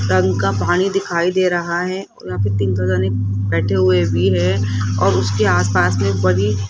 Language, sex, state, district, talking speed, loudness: Hindi, female, Rajasthan, Jaipur, 205 wpm, -17 LUFS